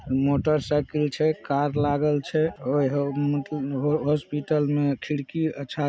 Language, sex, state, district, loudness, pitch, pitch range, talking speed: Hindi, male, Bihar, Saharsa, -25 LUFS, 145 Hz, 140-150 Hz, 145 wpm